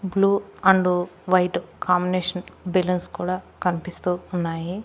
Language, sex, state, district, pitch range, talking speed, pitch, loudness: Telugu, female, Andhra Pradesh, Annamaya, 180-185 Hz, 100 wpm, 180 Hz, -23 LUFS